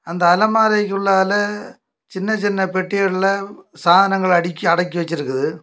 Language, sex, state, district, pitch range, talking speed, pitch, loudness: Tamil, male, Tamil Nadu, Kanyakumari, 175-205 Hz, 95 wpm, 190 Hz, -17 LUFS